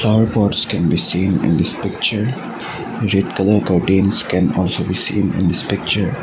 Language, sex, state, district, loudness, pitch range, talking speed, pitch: English, male, Assam, Sonitpur, -17 LUFS, 100-110 Hz, 165 wpm, 105 Hz